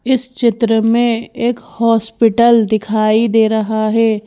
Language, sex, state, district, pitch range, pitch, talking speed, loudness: Hindi, female, Madhya Pradesh, Bhopal, 220-235 Hz, 230 Hz, 125 wpm, -14 LUFS